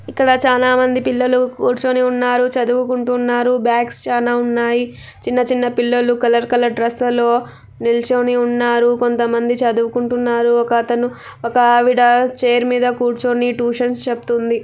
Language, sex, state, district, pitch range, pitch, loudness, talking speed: Telugu, female, Andhra Pradesh, Anantapur, 240-250 Hz, 245 Hz, -16 LUFS, 115 wpm